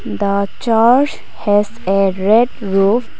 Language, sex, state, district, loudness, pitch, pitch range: English, female, Nagaland, Kohima, -15 LUFS, 205 Hz, 195-230 Hz